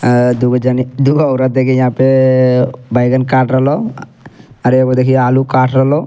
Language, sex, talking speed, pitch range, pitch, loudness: Angika, male, 180 wpm, 125-130 Hz, 130 Hz, -12 LUFS